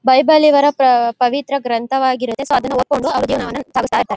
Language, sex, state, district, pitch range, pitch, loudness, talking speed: Kannada, female, Karnataka, Mysore, 245-280 Hz, 260 Hz, -15 LUFS, 130 wpm